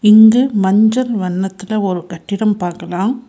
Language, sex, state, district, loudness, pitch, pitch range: Tamil, female, Tamil Nadu, Nilgiris, -14 LUFS, 205 Hz, 185-220 Hz